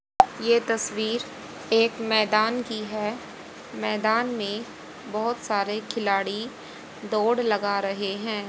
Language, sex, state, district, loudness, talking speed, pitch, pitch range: Hindi, female, Haryana, Rohtak, -25 LUFS, 105 wpm, 215 Hz, 210-230 Hz